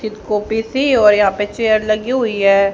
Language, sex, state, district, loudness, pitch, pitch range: Hindi, female, Haryana, Rohtak, -15 LUFS, 215 Hz, 205-225 Hz